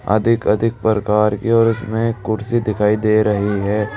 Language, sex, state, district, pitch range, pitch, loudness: Hindi, male, Uttar Pradesh, Saharanpur, 105-115 Hz, 110 Hz, -17 LUFS